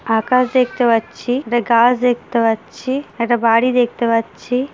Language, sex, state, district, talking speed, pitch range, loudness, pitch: Bengali, female, West Bengal, Dakshin Dinajpur, 140 wpm, 230-250 Hz, -16 LUFS, 240 Hz